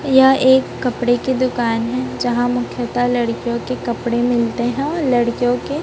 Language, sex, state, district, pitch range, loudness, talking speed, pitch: Hindi, female, Chhattisgarh, Raipur, 240-260 Hz, -18 LUFS, 155 wpm, 245 Hz